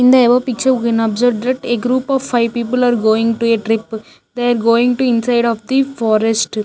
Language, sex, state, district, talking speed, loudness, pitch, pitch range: English, female, Chandigarh, Chandigarh, 235 wpm, -15 LUFS, 240 Hz, 225-250 Hz